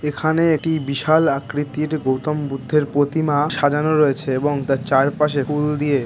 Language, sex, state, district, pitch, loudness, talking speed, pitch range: Bengali, male, West Bengal, North 24 Parganas, 145 Hz, -19 LUFS, 140 wpm, 140-150 Hz